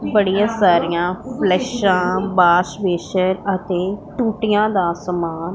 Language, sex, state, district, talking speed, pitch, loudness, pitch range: Punjabi, female, Punjab, Pathankot, 95 wpm, 185 Hz, -18 LUFS, 175-205 Hz